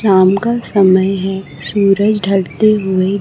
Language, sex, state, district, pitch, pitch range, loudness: Hindi, female, Chhattisgarh, Raipur, 195 Hz, 190-210 Hz, -13 LUFS